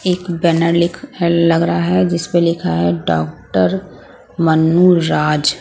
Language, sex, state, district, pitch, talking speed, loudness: Hindi, female, Punjab, Pathankot, 165 Hz, 130 wpm, -15 LUFS